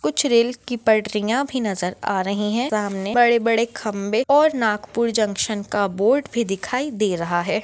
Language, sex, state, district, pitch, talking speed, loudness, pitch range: Hindi, female, Maharashtra, Nagpur, 220 Hz, 175 wpm, -21 LUFS, 205-240 Hz